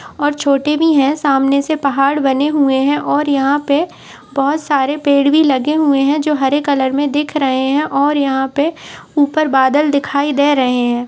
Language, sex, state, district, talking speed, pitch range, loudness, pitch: Hindi, female, Uttar Pradesh, Etah, 195 wpm, 275-295 Hz, -14 LUFS, 285 Hz